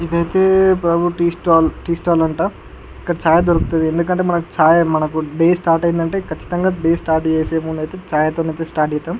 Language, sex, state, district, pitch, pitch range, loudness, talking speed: Telugu, male, Andhra Pradesh, Guntur, 165 Hz, 160-175 Hz, -16 LUFS, 150 wpm